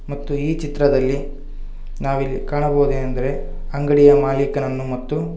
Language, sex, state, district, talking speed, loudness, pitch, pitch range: Kannada, male, Karnataka, Bangalore, 90 wpm, -19 LUFS, 140 Hz, 135-145 Hz